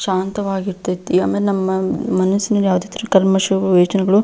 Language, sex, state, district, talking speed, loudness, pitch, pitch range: Kannada, female, Karnataka, Belgaum, 115 wpm, -17 LUFS, 190 Hz, 185-200 Hz